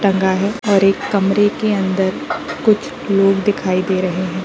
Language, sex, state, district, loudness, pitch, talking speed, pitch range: Hindi, female, Uttar Pradesh, Varanasi, -16 LUFS, 195 Hz, 175 wpm, 190-205 Hz